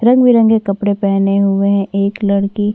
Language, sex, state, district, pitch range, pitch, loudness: Hindi, female, Chhattisgarh, Korba, 200-215 Hz, 200 Hz, -13 LUFS